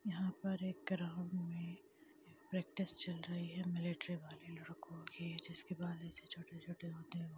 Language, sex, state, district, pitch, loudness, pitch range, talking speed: Hindi, female, Bihar, Gaya, 175 Hz, -45 LUFS, 170-185 Hz, 155 wpm